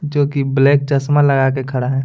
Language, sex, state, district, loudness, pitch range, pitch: Hindi, male, Bihar, Patna, -15 LUFS, 135-145 Hz, 140 Hz